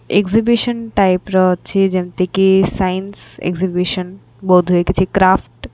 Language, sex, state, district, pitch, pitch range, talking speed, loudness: Odia, female, Odisha, Khordha, 185 Hz, 180-195 Hz, 135 wpm, -15 LUFS